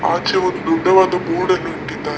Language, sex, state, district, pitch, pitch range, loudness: Kannada, male, Karnataka, Dakshina Kannada, 185 Hz, 180-185 Hz, -17 LUFS